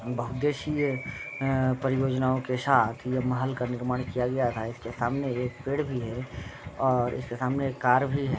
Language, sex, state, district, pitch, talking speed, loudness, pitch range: Hindi, male, Bihar, Vaishali, 130 Hz, 185 wpm, -28 LUFS, 125-135 Hz